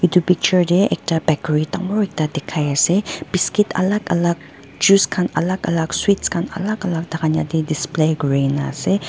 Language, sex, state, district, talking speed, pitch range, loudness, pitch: Nagamese, female, Nagaland, Dimapur, 150 wpm, 155-190 Hz, -18 LUFS, 170 Hz